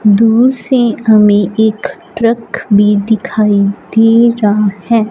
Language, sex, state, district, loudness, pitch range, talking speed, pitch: Hindi, female, Punjab, Fazilka, -11 LUFS, 210-230 Hz, 115 wpm, 220 Hz